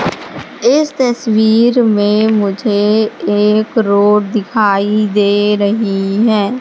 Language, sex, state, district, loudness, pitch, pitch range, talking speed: Hindi, female, Madhya Pradesh, Katni, -12 LUFS, 210 Hz, 205-220 Hz, 90 wpm